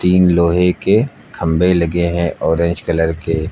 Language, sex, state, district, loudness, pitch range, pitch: Hindi, male, Uttar Pradesh, Lucknow, -15 LUFS, 80-90 Hz, 85 Hz